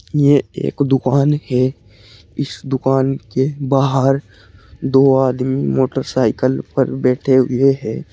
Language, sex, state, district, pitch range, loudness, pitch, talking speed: Hindi, male, Uttar Pradesh, Saharanpur, 125-135 Hz, -16 LUFS, 130 Hz, 110 wpm